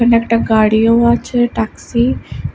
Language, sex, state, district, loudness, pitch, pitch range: Bengali, female, West Bengal, Kolkata, -14 LUFS, 230 Hz, 225-235 Hz